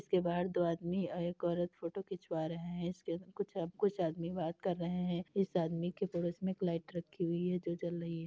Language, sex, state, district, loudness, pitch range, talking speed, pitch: Hindi, female, Uttar Pradesh, Deoria, -38 LUFS, 170-185 Hz, 240 wpm, 175 Hz